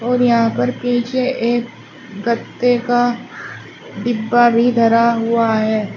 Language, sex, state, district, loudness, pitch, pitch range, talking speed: Hindi, female, Uttar Pradesh, Shamli, -16 LUFS, 235 Hz, 230-245 Hz, 120 wpm